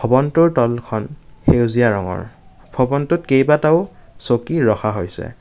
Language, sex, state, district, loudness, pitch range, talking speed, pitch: Assamese, male, Assam, Kamrup Metropolitan, -17 LUFS, 110-145 Hz, 100 wpm, 120 Hz